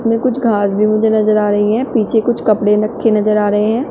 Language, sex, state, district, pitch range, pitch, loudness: Hindi, female, Uttar Pradesh, Shamli, 210-230 Hz, 215 Hz, -14 LUFS